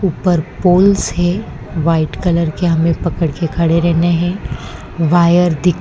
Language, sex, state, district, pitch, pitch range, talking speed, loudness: Hindi, female, Gujarat, Valsad, 170 Hz, 165-180 Hz, 155 wpm, -14 LUFS